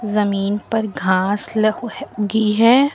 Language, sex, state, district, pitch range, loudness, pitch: Hindi, female, Uttar Pradesh, Lucknow, 205-225 Hz, -18 LUFS, 215 Hz